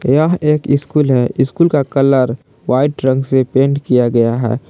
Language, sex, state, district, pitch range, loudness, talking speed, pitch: Hindi, male, Jharkhand, Palamu, 125-145 Hz, -14 LUFS, 180 wpm, 135 Hz